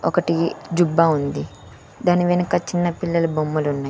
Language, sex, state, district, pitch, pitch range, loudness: Telugu, female, Andhra Pradesh, Sri Satya Sai, 165 Hz, 145-175 Hz, -20 LUFS